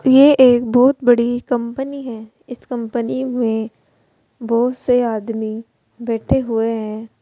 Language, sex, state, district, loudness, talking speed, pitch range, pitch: Hindi, female, Uttar Pradesh, Saharanpur, -17 LUFS, 125 wpm, 225-250 Hz, 240 Hz